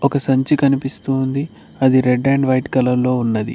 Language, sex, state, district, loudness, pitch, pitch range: Telugu, male, Telangana, Mahabubabad, -17 LUFS, 130 Hz, 125-135 Hz